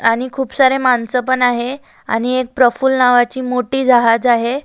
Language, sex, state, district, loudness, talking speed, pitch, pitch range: Marathi, female, Maharashtra, Solapur, -15 LUFS, 155 wpm, 250 Hz, 240-260 Hz